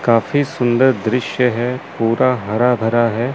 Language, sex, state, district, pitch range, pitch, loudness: Hindi, male, Chandigarh, Chandigarh, 115-125 Hz, 120 Hz, -16 LUFS